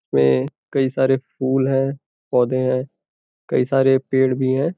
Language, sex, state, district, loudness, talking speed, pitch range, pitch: Hindi, male, Uttar Pradesh, Gorakhpur, -19 LUFS, 150 wpm, 130-135 Hz, 130 Hz